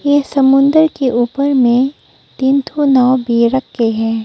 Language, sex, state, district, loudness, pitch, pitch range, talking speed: Hindi, female, Arunachal Pradesh, Papum Pare, -13 LUFS, 265 Hz, 240-280 Hz, 170 wpm